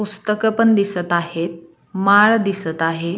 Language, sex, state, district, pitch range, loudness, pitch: Marathi, female, Maharashtra, Solapur, 170-210 Hz, -17 LUFS, 195 Hz